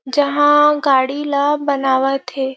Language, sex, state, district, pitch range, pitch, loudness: Chhattisgarhi, female, Chhattisgarh, Rajnandgaon, 265-290 Hz, 280 Hz, -15 LUFS